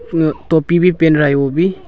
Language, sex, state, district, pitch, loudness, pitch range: Hindi, male, Arunachal Pradesh, Longding, 160 Hz, -14 LUFS, 155-175 Hz